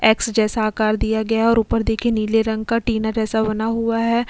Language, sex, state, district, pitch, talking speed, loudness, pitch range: Hindi, female, Uttar Pradesh, Jyotiba Phule Nagar, 225 Hz, 235 wpm, -19 LUFS, 220-230 Hz